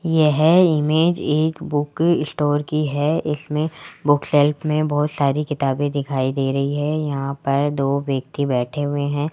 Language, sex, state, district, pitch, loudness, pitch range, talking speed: Hindi, male, Rajasthan, Jaipur, 145 Hz, -20 LUFS, 140-155 Hz, 160 wpm